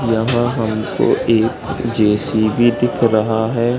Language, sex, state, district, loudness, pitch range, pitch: Hindi, male, Madhya Pradesh, Katni, -16 LUFS, 110-120 Hz, 115 Hz